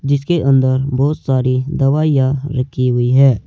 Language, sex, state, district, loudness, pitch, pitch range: Hindi, male, Uttar Pradesh, Saharanpur, -15 LUFS, 135 Hz, 130-140 Hz